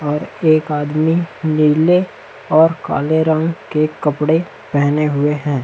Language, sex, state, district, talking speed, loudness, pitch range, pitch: Hindi, male, Chhattisgarh, Raipur, 125 wpm, -16 LUFS, 150-160 Hz, 155 Hz